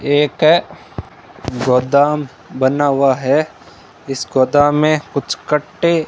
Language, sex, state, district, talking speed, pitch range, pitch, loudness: Hindi, male, Rajasthan, Bikaner, 110 wpm, 130-150 Hz, 140 Hz, -15 LUFS